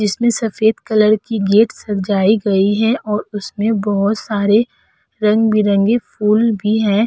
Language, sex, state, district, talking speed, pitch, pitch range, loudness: Hindi, female, Uttar Pradesh, Budaun, 135 wpm, 215 Hz, 205-225 Hz, -15 LUFS